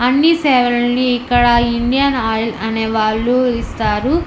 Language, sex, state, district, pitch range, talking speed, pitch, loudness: Telugu, female, Andhra Pradesh, Anantapur, 225-255 Hz, 115 wpm, 245 Hz, -15 LUFS